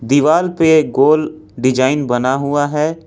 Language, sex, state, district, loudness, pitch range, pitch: Hindi, male, Jharkhand, Ranchi, -14 LUFS, 130-155 Hz, 145 Hz